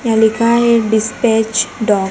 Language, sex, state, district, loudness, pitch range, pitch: Hindi, female, Bihar, Gaya, -13 LUFS, 220-235 Hz, 220 Hz